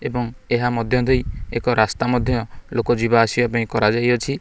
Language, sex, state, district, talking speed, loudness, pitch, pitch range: Odia, male, Odisha, Khordha, 165 wpm, -20 LUFS, 120 Hz, 115-125 Hz